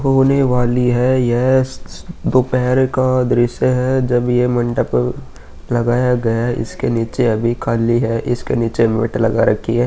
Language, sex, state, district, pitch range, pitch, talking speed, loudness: Hindi, male, Uttar Pradesh, Muzaffarnagar, 115-125 Hz, 120 Hz, 150 wpm, -16 LUFS